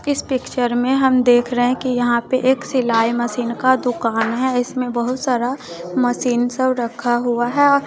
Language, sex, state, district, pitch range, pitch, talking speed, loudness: Hindi, female, Bihar, West Champaran, 240-260 Hz, 245 Hz, 185 wpm, -18 LUFS